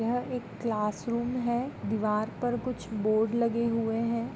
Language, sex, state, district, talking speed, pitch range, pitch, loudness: Hindi, female, Goa, North and South Goa, 150 wpm, 220-240 Hz, 230 Hz, -30 LUFS